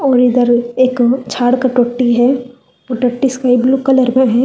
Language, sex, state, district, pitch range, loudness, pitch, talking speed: Hindi, female, Telangana, Hyderabad, 245-255 Hz, -13 LUFS, 250 Hz, 150 wpm